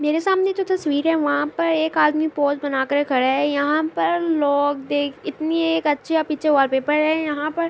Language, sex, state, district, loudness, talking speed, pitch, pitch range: Urdu, female, Andhra Pradesh, Anantapur, -20 LUFS, 195 wpm, 300 Hz, 285-320 Hz